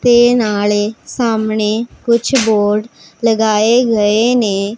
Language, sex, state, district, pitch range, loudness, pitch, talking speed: Punjabi, female, Punjab, Pathankot, 210-235 Hz, -14 LUFS, 220 Hz, 100 wpm